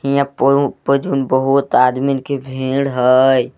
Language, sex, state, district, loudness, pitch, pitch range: Magahi, male, Jharkhand, Palamu, -15 LUFS, 135 Hz, 130-140 Hz